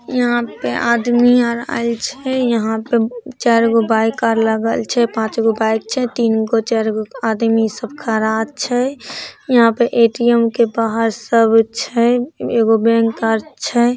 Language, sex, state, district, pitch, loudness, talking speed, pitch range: Maithili, female, Bihar, Samastipur, 230 Hz, -16 LUFS, 130 wpm, 225-240 Hz